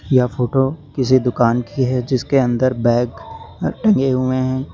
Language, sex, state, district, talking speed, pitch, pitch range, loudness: Hindi, male, Uttar Pradesh, Lucknow, 165 wpm, 130 Hz, 125-135 Hz, -17 LUFS